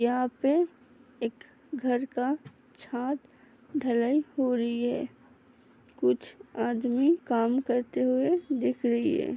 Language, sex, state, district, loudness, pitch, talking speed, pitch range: Hindi, female, Uttar Pradesh, Hamirpur, -28 LUFS, 255 Hz, 120 wpm, 240-280 Hz